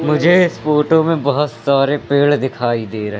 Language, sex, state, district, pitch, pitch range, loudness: Hindi, male, Madhya Pradesh, Katni, 145 Hz, 130-155 Hz, -15 LUFS